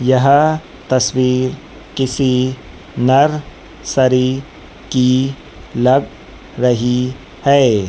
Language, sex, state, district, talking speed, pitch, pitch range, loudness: Hindi, female, Madhya Pradesh, Dhar, 70 wpm, 130 Hz, 125-135 Hz, -15 LUFS